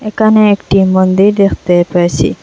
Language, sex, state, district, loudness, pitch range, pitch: Bengali, female, Assam, Hailakandi, -10 LUFS, 175-210 Hz, 195 Hz